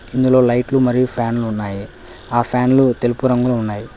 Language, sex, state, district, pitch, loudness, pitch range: Telugu, male, Telangana, Hyderabad, 120 Hz, -16 LUFS, 115-125 Hz